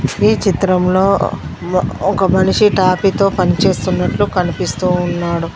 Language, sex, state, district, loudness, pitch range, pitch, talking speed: Telugu, female, Telangana, Mahabubabad, -14 LUFS, 180-195 Hz, 190 Hz, 95 wpm